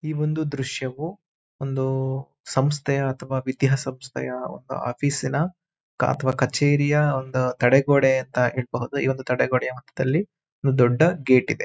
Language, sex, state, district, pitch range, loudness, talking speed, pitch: Kannada, male, Karnataka, Mysore, 130-145 Hz, -23 LUFS, 130 wpm, 135 Hz